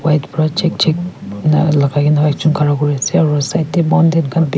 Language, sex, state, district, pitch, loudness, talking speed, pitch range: Nagamese, female, Nagaland, Kohima, 155 Hz, -14 LUFS, 220 wpm, 150-170 Hz